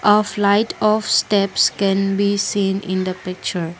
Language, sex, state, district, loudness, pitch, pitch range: English, female, Assam, Kamrup Metropolitan, -18 LUFS, 200 Hz, 185-205 Hz